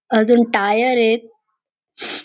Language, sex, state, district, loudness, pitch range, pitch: Marathi, female, Maharashtra, Dhule, -16 LUFS, 215-240 Hz, 230 Hz